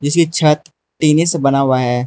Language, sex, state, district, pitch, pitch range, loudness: Hindi, male, Arunachal Pradesh, Lower Dibang Valley, 150 Hz, 135-160 Hz, -14 LUFS